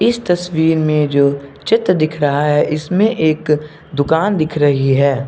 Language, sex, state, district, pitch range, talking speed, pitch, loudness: Hindi, male, Arunachal Pradesh, Lower Dibang Valley, 145-160 Hz, 160 wpm, 155 Hz, -15 LUFS